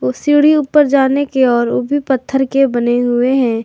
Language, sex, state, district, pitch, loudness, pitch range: Hindi, female, Jharkhand, Garhwa, 265 Hz, -13 LUFS, 245-285 Hz